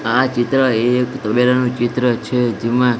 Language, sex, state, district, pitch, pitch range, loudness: Gujarati, male, Gujarat, Gandhinagar, 125 Hz, 120-125 Hz, -16 LUFS